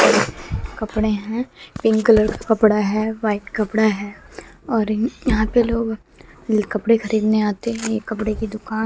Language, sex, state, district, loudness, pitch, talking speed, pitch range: Hindi, female, Bihar, West Champaran, -20 LUFS, 220 Hz, 165 wpm, 215-225 Hz